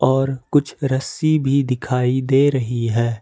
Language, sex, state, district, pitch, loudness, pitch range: Hindi, male, Jharkhand, Ranchi, 130 Hz, -19 LUFS, 125-140 Hz